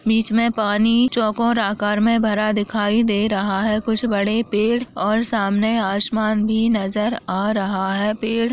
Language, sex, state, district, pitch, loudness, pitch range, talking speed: Hindi, female, Bihar, Purnia, 215 Hz, -19 LUFS, 205-230 Hz, 170 wpm